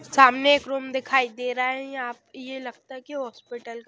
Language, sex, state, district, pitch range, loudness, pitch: Hindi, female, Haryana, Jhajjar, 245-270 Hz, -23 LUFS, 260 Hz